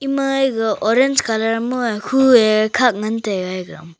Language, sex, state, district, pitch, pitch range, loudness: Wancho, male, Arunachal Pradesh, Longding, 225 Hz, 215-260 Hz, -17 LUFS